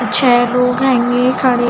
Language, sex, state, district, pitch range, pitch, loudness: Hindi, female, Chhattisgarh, Balrampur, 245-255 Hz, 250 Hz, -13 LUFS